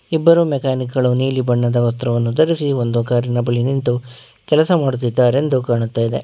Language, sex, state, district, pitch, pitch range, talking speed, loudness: Kannada, male, Karnataka, Bangalore, 125 Hz, 120-135 Hz, 145 wpm, -17 LUFS